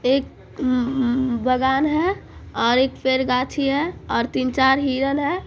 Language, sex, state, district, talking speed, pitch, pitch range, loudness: Maithili, female, Bihar, Supaul, 185 wpm, 265 Hz, 255-280 Hz, -21 LUFS